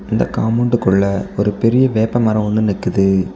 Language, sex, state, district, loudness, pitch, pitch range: Tamil, male, Tamil Nadu, Kanyakumari, -16 LUFS, 105 Hz, 100-115 Hz